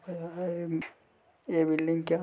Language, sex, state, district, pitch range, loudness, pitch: Hindi, male, Bihar, Kishanganj, 165-175 Hz, -31 LUFS, 165 Hz